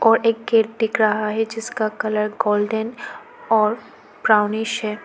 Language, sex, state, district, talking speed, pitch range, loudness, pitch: Hindi, female, Arunachal Pradesh, Lower Dibang Valley, 140 wpm, 215-225 Hz, -20 LUFS, 220 Hz